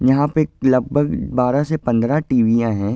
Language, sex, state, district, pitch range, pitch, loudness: Hindi, male, Uttar Pradesh, Ghazipur, 120-145 Hz, 130 Hz, -18 LUFS